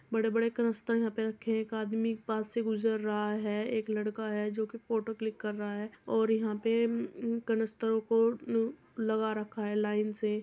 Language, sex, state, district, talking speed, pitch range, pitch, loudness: Hindi, female, Uttar Pradesh, Muzaffarnagar, 215 wpm, 215-225 Hz, 220 Hz, -32 LUFS